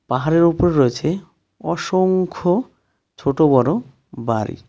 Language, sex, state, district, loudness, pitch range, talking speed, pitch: Bengali, male, West Bengal, Darjeeling, -18 LUFS, 130-180 Hz, 90 wpm, 160 Hz